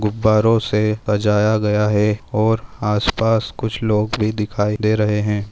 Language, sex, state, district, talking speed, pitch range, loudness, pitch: Hindi, male, Maharashtra, Nagpur, 165 wpm, 105-110 Hz, -18 LUFS, 105 Hz